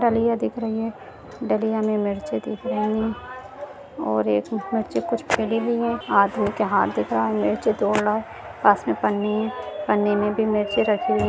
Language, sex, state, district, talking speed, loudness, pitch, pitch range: Hindi, female, Bihar, Gaya, 190 wpm, -23 LUFS, 215 Hz, 200-230 Hz